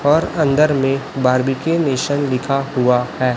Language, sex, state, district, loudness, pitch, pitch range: Hindi, male, Chhattisgarh, Raipur, -17 LUFS, 135 Hz, 130-145 Hz